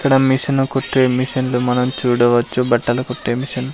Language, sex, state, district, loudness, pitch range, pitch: Telugu, male, Andhra Pradesh, Sri Satya Sai, -16 LUFS, 125-135 Hz, 125 Hz